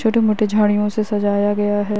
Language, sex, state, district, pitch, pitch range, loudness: Hindi, female, Uttar Pradesh, Varanasi, 210 Hz, 205-215 Hz, -18 LUFS